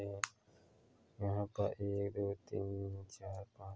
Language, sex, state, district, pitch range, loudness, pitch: Hindi, male, Chhattisgarh, Korba, 100-105 Hz, -42 LUFS, 100 Hz